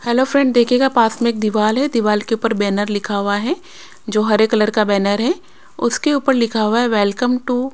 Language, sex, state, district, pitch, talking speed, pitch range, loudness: Hindi, female, Punjab, Kapurthala, 230 Hz, 225 wpm, 210-250 Hz, -17 LUFS